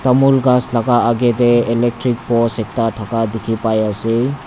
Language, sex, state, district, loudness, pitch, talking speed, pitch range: Nagamese, male, Nagaland, Dimapur, -15 LUFS, 115 Hz, 135 wpm, 115-125 Hz